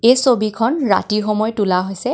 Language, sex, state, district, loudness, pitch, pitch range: Assamese, female, Assam, Kamrup Metropolitan, -17 LUFS, 215 Hz, 205-245 Hz